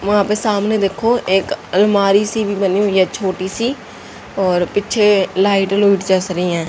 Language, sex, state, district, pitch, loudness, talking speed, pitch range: Hindi, female, Haryana, Jhajjar, 200 Hz, -16 LUFS, 180 wpm, 190-210 Hz